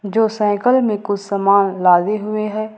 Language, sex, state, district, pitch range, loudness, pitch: Hindi, female, Jharkhand, Ranchi, 200-215 Hz, -16 LUFS, 210 Hz